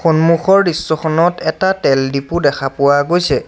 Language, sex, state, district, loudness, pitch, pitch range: Assamese, male, Assam, Sonitpur, -14 LUFS, 160 Hz, 140-175 Hz